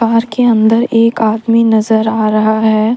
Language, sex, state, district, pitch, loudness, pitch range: Hindi, female, Jharkhand, Deoghar, 225 Hz, -11 LUFS, 220-230 Hz